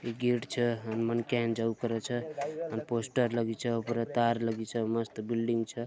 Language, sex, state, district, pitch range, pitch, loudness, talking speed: Halbi, male, Chhattisgarh, Bastar, 115-120 Hz, 115 Hz, -32 LUFS, 185 wpm